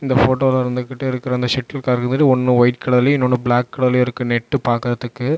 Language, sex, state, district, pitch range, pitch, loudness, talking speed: Tamil, male, Tamil Nadu, Namakkal, 125-130 Hz, 125 Hz, -17 LUFS, 180 wpm